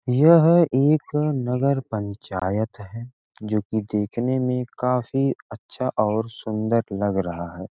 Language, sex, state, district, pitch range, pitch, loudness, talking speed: Hindi, male, Bihar, Gopalganj, 105-135 Hz, 115 Hz, -22 LUFS, 125 wpm